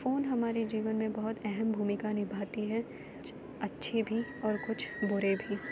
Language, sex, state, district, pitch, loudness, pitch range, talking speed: Hindi, female, Uttar Pradesh, Jalaun, 220 Hz, -34 LUFS, 210-225 Hz, 170 wpm